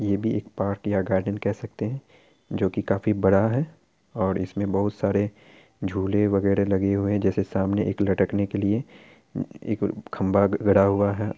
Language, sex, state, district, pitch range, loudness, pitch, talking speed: Hindi, male, Bihar, Araria, 95-105 Hz, -24 LUFS, 100 Hz, 195 wpm